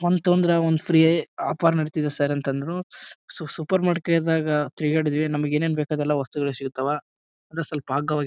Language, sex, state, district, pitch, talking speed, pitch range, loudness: Kannada, male, Karnataka, Bijapur, 155 Hz, 165 wpm, 150-165 Hz, -23 LUFS